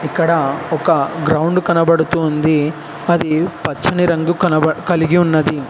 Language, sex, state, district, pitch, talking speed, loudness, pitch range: Telugu, male, Telangana, Hyderabad, 165 Hz, 115 wpm, -15 LUFS, 155-170 Hz